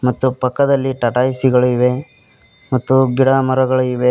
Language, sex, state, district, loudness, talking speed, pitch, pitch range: Kannada, male, Karnataka, Koppal, -15 LUFS, 115 wpm, 130 Hz, 125-130 Hz